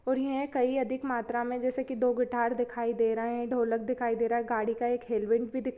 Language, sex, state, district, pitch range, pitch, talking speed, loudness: Hindi, female, Jharkhand, Sahebganj, 235-255 Hz, 240 Hz, 260 wpm, -30 LUFS